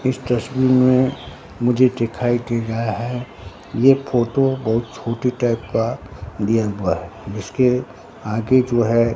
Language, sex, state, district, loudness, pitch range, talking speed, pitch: Hindi, male, Bihar, Katihar, -19 LUFS, 110-125 Hz, 135 wpm, 120 Hz